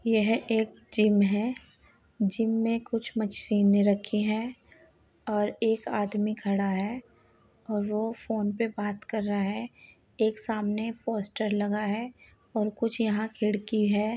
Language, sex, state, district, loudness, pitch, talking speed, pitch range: Hindi, female, Uttar Pradesh, Muzaffarnagar, -28 LUFS, 215 Hz, 140 wpm, 210-225 Hz